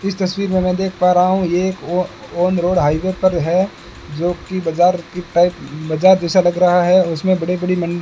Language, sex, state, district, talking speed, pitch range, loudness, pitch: Hindi, male, Rajasthan, Bikaner, 230 wpm, 175-185 Hz, -16 LUFS, 180 Hz